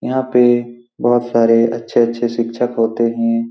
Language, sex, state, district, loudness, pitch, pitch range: Hindi, male, Bihar, Supaul, -16 LUFS, 115 Hz, 115-120 Hz